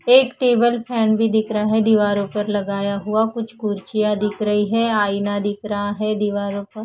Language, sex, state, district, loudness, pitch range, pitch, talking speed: Hindi, female, Punjab, Fazilka, -19 LUFS, 205-220 Hz, 210 Hz, 185 wpm